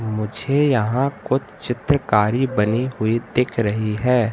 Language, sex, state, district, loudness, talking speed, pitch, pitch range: Hindi, male, Madhya Pradesh, Katni, -20 LUFS, 125 wpm, 120 Hz, 110-130 Hz